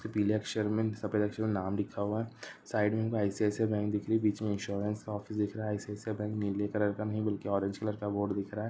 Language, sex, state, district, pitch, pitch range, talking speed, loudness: Hindi, male, Andhra Pradesh, Anantapur, 105 Hz, 105-110 Hz, 285 wpm, -33 LUFS